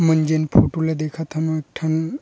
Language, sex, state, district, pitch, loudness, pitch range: Chhattisgarhi, male, Chhattisgarh, Rajnandgaon, 160 Hz, -20 LUFS, 155-160 Hz